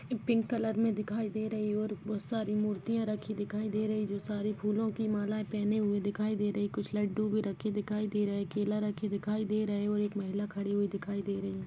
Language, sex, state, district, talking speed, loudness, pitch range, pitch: Hindi, female, Chhattisgarh, Kabirdham, 240 wpm, -33 LUFS, 205-215 Hz, 210 Hz